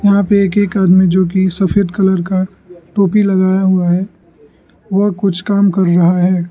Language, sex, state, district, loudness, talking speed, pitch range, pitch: Hindi, male, Arunachal Pradesh, Lower Dibang Valley, -13 LUFS, 185 wpm, 180-200 Hz, 190 Hz